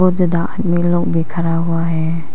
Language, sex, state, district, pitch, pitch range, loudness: Hindi, female, Arunachal Pradesh, Papum Pare, 170 Hz, 165-175 Hz, -17 LUFS